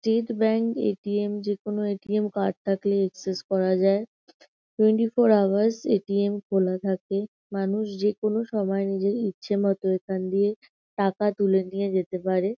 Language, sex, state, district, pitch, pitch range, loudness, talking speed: Bengali, female, West Bengal, North 24 Parganas, 200 Hz, 195-210 Hz, -25 LUFS, 140 wpm